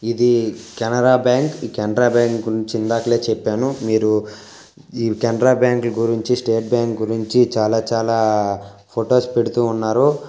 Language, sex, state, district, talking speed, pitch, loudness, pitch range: Telugu, male, Telangana, Nalgonda, 130 wpm, 115 Hz, -18 LUFS, 110-120 Hz